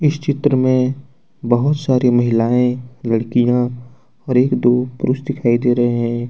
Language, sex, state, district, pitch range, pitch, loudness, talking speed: Hindi, male, Jharkhand, Deoghar, 120-130 Hz, 125 Hz, -17 LUFS, 145 wpm